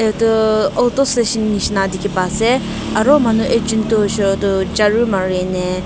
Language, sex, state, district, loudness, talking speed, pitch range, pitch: Nagamese, female, Nagaland, Kohima, -15 LUFS, 195 wpm, 195-225 Hz, 215 Hz